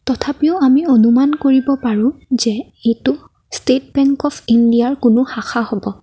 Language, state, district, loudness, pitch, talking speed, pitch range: Assamese, Assam, Kamrup Metropolitan, -15 LUFS, 255 Hz, 140 wpm, 235-275 Hz